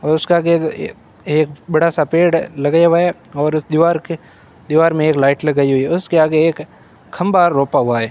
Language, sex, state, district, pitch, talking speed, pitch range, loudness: Hindi, male, Rajasthan, Bikaner, 155 Hz, 215 wpm, 150-170 Hz, -15 LUFS